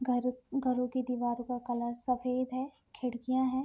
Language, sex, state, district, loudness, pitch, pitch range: Hindi, female, Bihar, Sitamarhi, -34 LUFS, 250 Hz, 245-255 Hz